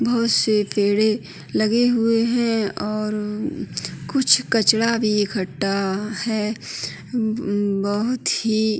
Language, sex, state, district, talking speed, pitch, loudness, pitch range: Hindi, female, Uttarakhand, Tehri Garhwal, 115 wpm, 215 Hz, -21 LUFS, 205-230 Hz